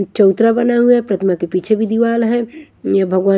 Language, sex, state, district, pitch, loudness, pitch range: Hindi, female, Punjab, Kapurthala, 220 Hz, -14 LUFS, 195-235 Hz